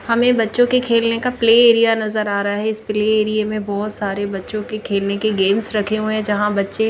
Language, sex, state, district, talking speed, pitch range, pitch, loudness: Hindi, female, Chandigarh, Chandigarh, 235 wpm, 205-225 Hz, 215 Hz, -17 LUFS